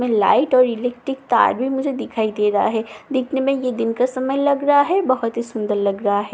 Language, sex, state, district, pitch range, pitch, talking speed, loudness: Hindi, female, Bihar, Katihar, 220-270 Hz, 250 Hz, 245 wpm, -19 LUFS